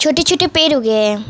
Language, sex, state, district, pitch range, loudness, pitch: Hindi, female, West Bengal, Alipurduar, 220-330 Hz, -13 LUFS, 305 Hz